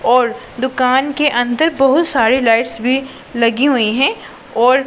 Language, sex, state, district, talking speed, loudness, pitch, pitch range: Hindi, female, Punjab, Pathankot, 150 wpm, -14 LUFS, 255 Hz, 240-270 Hz